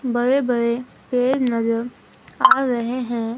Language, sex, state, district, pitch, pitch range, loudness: Hindi, female, Himachal Pradesh, Shimla, 245 Hz, 235-255 Hz, -20 LUFS